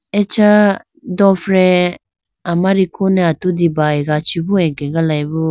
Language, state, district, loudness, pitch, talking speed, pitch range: Idu Mishmi, Arunachal Pradesh, Lower Dibang Valley, -14 LUFS, 180 Hz, 85 wpm, 160-195 Hz